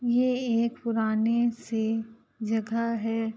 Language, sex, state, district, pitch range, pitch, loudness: Hindi, female, Uttar Pradesh, Ghazipur, 225-235 Hz, 230 Hz, -27 LUFS